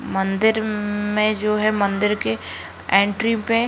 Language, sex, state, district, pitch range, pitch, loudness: Hindi, female, Uttar Pradesh, Hamirpur, 195-215 Hz, 210 Hz, -20 LUFS